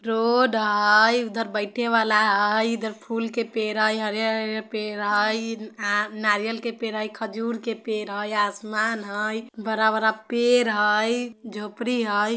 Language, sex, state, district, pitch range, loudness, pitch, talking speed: Bajjika, female, Bihar, Vaishali, 210-230 Hz, -23 LUFS, 220 Hz, 160 wpm